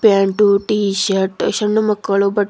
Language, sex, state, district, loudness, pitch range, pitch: Kannada, female, Karnataka, Bidar, -16 LUFS, 195-210 Hz, 205 Hz